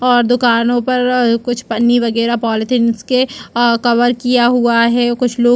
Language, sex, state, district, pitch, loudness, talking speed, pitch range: Hindi, female, Chhattisgarh, Bastar, 240 Hz, -14 LUFS, 175 wpm, 235-245 Hz